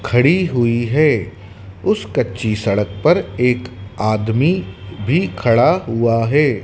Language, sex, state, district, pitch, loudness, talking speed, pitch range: Hindi, male, Madhya Pradesh, Dhar, 115 Hz, -17 LUFS, 115 wpm, 100-125 Hz